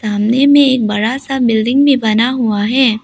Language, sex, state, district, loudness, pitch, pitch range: Hindi, female, Arunachal Pradesh, Lower Dibang Valley, -12 LUFS, 240 Hz, 220-265 Hz